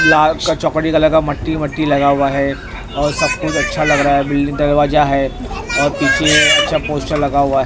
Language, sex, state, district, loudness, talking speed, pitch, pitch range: Hindi, male, Maharashtra, Mumbai Suburban, -14 LUFS, 205 wpm, 145 Hz, 140-155 Hz